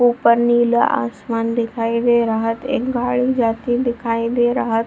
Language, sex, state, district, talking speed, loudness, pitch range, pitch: Hindi, female, Bihar, Supaul, 150 wpm, -18 LUFS, 230-245 Hz, 235 Hz